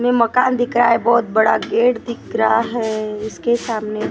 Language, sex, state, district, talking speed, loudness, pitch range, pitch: Hindi, female, Maharashtra, Gondia, 190 wpm, -17 LUFS, 220-240 Hz, 235 Hz